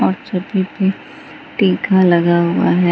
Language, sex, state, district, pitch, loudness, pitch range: Hindi, female, Bihar, Gaya, 190 Hz, -15 LUFS, 175-200 Hz